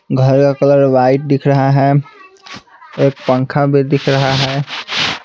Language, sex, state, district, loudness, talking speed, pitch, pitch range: Hindi, male, Bihar, Patna, -13 LUFS, 150 wpm, 140 Hz, 135-140 Hz